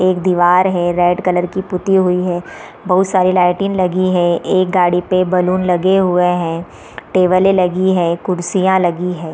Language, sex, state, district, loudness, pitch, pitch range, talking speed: Hindi, female, Bihar, East Champaran, -14 LUFS, 180 Hz, 175-185 Hz, 195 wpm